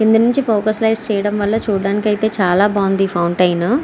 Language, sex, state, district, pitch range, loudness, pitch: Telugu, female, Andhra Pradesh, Srikakulam, 195-220 Hz, -16 LUFS, 205 Hz